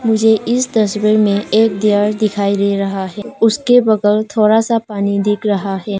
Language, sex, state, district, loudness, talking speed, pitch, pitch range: Hindi, female, Arunachal Pradesh, Papum Pare, -14 LUFS, 180 wpm, 210 Hz, 205-220 Hz